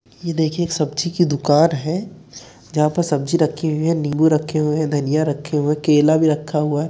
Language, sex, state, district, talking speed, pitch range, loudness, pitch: Hindi, male, Uttar Pradesh, Etah, 215 wpm, 150-160 Hz, -18 LUFS, 155 Hz